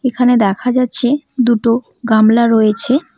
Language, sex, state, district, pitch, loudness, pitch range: Bengali, female, West Bengal, Cooch Behar, 245 Hz, -13 LUFS, 230-255 Hz